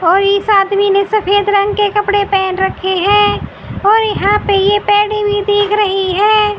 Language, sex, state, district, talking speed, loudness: Hindi, female, Haryana, Rohtak, 180 wpm, -12 LUFS